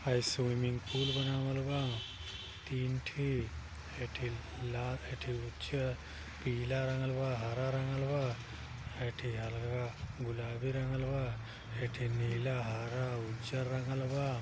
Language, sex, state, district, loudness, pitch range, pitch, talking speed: Hindi, male, Uttar Pradesh, Gorakhpur, -38 LUFS, 115-130 Hz, 125 Hz, 135 wpm